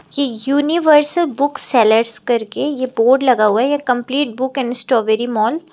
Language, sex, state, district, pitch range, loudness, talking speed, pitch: Hindi, female, Uttar Pradesh, Lucknow, 235-285 Hz, -16 LUFS, 180 wpm, 260 Hz